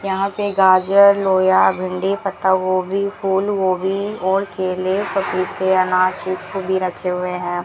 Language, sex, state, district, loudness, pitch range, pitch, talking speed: Hindi, female, Rajasthan, Bikaner, -17 LUFS, 185-195 Hz, 190 Hz, 140 wpm